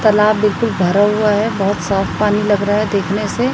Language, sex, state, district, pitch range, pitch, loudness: Hindi, female, Chhattisgarh, Raipur, 200-215 Hz, 210 Hz, -15 LUFS